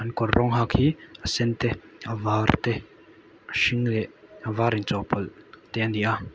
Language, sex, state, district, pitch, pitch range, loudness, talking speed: Mizo, male, Mizoram, Aizawl, 115 Hz, 110-120 Hz, -25 LUFS, 190 wpm